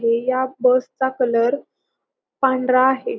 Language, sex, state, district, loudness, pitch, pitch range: Marathi, female, Maharashtra, Pune, -19 LUFS, 260 Hz, 250-265 Hz